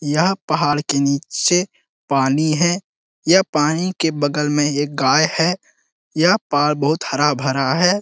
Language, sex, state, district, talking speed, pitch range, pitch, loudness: Hindi, male, Bihar, Jamui, 140 wpm, 145-175 Hz, 155 Hz, -18 LUFS